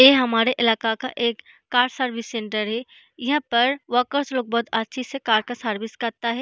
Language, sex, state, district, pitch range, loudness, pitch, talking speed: Hindi, female, Bihar, East Champaran, 225-255 Hz, -22 LUFS, 240 Hz, 195 wpm